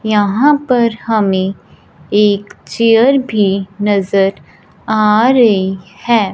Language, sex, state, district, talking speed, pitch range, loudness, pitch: Hindi, female, Punjab, Fazilka, 95 wpm, 195-230 Hz, -13 LUFS, 210 Hz